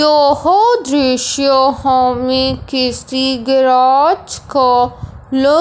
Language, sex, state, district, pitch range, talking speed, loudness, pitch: Hindi, male, Punjab, Fazilka, 255-285 Hz, 75 wpm, -13 LUFS, 265 Hz